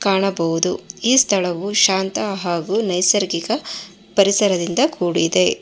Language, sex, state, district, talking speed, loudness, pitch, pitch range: Kannada, female, Karnataka, Bangalore, 85 wpm, -18 LUFS, 195 Hz, 180-205 Hz